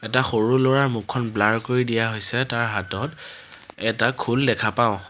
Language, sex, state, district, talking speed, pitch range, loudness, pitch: Assamese, male, Assam, Sonitpur, 165 wpm, 110-125 Hz, -22 LUFS, 115 Hz